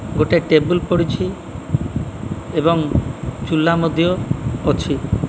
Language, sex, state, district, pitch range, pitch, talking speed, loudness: Odia, male, Odisha, Malkangiri, 145-165 Hz, 155 Hz, 80 wpm, -19 LUFS